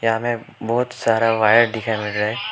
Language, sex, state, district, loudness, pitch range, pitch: Hindi, male, Arunachal Pradesh, Lower Dibang Valley, -19 LUFS, 110-115 Hz, 115 Hz